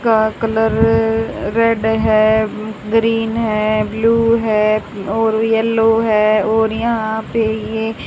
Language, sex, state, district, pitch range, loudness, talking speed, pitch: Hindi, male, Haryana, Charkhi Dadri, 215-225 Hz, -15 LUFS, 120 wpm, 220 Hz